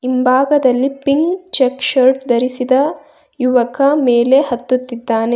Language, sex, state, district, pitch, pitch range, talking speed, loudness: Kannada, female, Karnataka, Bangalore, 260 Hz, 250-275 Hz, 90 wpm, -14 LUFS